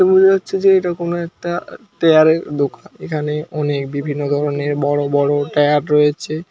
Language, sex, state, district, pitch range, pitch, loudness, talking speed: Bengali, male, West Bengal, Jhargram, 145-175 Hz, 150 Hz, -17 LUFS, 155 wpm